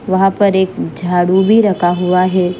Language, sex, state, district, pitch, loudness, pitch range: Hindi, female, Punjab, Fazilka, 185 Hz, -13 LUFS, 180-195 Hz